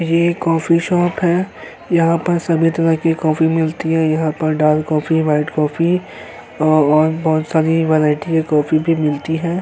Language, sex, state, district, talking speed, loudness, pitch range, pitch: Hindi, male, Uttar Pradesh, Hamirpur, 170 wpm, -16 LUFS, 155-165 Hz, 160 Hz